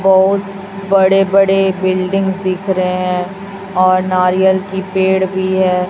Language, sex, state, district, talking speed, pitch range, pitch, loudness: Hindi, female, Chhattisgarh, Raipur, 130 wpm, 185-195 Hz, 190 Hz, -14 LUFS